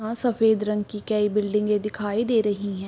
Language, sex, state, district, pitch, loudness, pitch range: Hindi, female, Chhattisgarh, Bilaspur, 210 Hz, -24 LUFS, 210-220 Hz